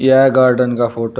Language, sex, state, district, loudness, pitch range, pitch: Hindi, male, Uttar Pradesh, Shamli, -13 LUFS, 120-130 Hz, 125 Hz